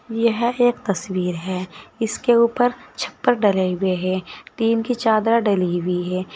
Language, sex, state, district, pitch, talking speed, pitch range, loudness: Hindi, female, Uttar Pradesh, Saharanpur, 210 Hz, 150 wpm, 185-235 Hz, -20 LUFS